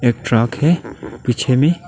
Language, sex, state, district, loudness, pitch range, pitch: Hindi, male, Arunachal Pradesh, Lower Dibang Valley, -17 LUFS, 120-155 Hz, 125 Hz